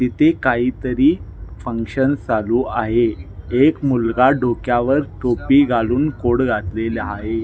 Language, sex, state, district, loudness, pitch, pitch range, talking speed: Marathi, male, Maharashtra, Nagpur, -18 LUFS, 120 Hz, 110-130 Hz, 105 wpm